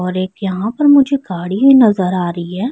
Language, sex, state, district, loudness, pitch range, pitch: Urdu, female, Uttar Pradesh, Budaun, -14 LUFS, 180-265 Hz, 195 Hz